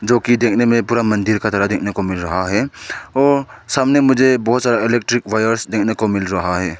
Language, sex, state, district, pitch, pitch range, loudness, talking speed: Hindi, male, Arunachal Pradesh, Lower Dibang Valley, 115 Hz, 100-120 Hz, -16 LUFS, 205 wpm